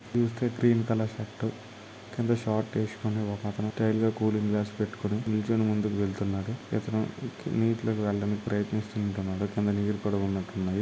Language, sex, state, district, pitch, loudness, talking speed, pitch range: Telugu, male, Andhra Pradesh, Chittoor, 110 Hz, -29 LUFS, 95 wpm, 105-110 Hz